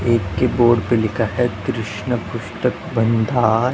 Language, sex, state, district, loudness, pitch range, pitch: Hindi, male, Punjab, Pathankot, -19 LUFS, 110-125 Hz, 115 Hz